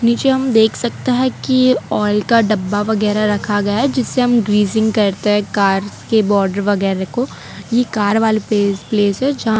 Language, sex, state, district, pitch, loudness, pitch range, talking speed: Hindi, female, Gujarat, Valsad, 215 Hz, -16 LUFS, 205-240 Hz, 180 wpm